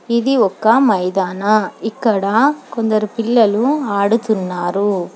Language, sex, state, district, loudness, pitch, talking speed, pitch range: Telugu, female, Telangana, Hyderabad, -16 LUFS, 215 Hz, 80 wpm, 195-235 Hz